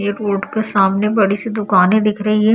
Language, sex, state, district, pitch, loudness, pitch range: Hindi, female, Uttar Pradesh, Budaun, 210 Hz, -16 LUFS, 200-215 Hz